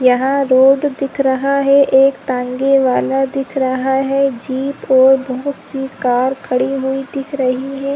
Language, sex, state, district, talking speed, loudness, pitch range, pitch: Hindi, female, Chhattisgarh, Rajnandgaon, 165 wpm, -15 LUFS, 260-275 Hz, 270 Hz